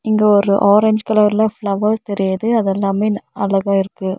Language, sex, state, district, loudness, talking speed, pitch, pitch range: Tamil, female, Tamil Nadu, Nilgiris, -16 LUFS, 145 wpm, 205 Hz, 195-215 Hz